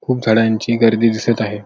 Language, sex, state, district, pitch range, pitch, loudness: Marathi, male, Maharashtra, Sindhudurg, 110-115 Hz, 115 Hz, -15 LUFS